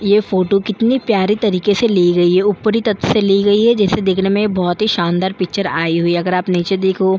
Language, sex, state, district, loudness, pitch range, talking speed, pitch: Hindi, female, Delhi, New Delhi, -15 LUFS, 180-210 Hz, 240 wpm, 195 Hz